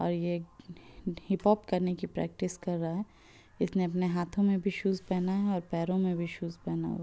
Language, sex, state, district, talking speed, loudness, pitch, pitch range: Hindi, female, Bihar, Muzaffarpur, 220 wpm, -32 LUFS, 180 Hz, 175-195 Hz